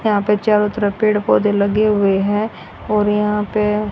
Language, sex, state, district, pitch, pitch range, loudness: Hindi, female, Haryana, Rohtak, 210 Hz, 205-210 Hz, -17 LUFS